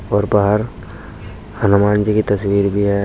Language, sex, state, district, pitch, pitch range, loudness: Hindi, male, Uttar Pradesh, Saharanpur, 100 Hz, 100-105 Hz, -16 LUFS